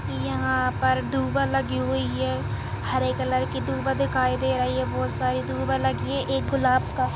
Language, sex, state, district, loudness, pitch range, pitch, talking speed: Kumaoni, female, Uttarakhand, Tehri Garhwal, -25 LUFS, 125-130 Hz, 130 Hz, 195 wpm